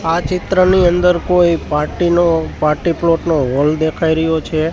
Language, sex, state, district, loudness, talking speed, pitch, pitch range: Gujarati, male, Gujarat, Gandhinagar, -14 LUFS, 165 wpm, 165 Hz, 160-175 Hz